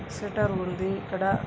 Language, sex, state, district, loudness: Telugu, female, Andhra Pradesh, Guntur, -29 LUFS